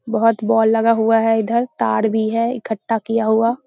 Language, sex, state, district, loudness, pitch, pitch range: Hindi, female, Bihar, Muzaffarpur, -17 LUFS, 225 Hz, 220-230 Hz